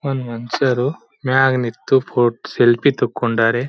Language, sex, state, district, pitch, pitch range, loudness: Kannada, male, Karnataka, Bijapur, 125 Hz, 120-135 Hz, -18 LUFS